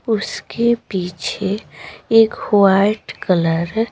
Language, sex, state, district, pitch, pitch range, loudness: Hindi, female, Bihar, Patna, 205 Hz, 185-225 Hz, -17 LUFS